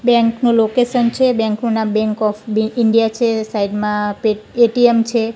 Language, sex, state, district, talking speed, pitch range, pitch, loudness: Gujarati, female, Gujarat, Gandhinagar, 180 wpm, 215-235 Hz, 225 Hz, -16 LUFS